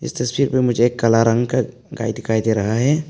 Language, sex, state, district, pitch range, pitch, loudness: Hindi, male, Arunachal Pradesh, Papum Pare, 115-125 Hz, 120 Hz, -18 LUFS